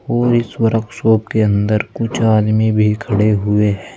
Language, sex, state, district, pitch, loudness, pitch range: Hindi, male, Uttar Pradesh, Saharanpur, 110 Hz, -15 LUFS, 105-115 Hz